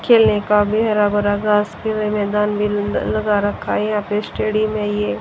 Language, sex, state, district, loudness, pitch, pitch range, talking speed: Hindi, female, Haryana, Rohtak, -18 LUFS, 210 Hz, 205-215 Hz, 185 wpm